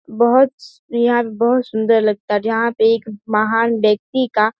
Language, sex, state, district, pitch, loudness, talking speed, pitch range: Hindi, female, Bihar, Saharsa, 230 Hz, -17 LUFS, 170 wpm, 215-240 Hz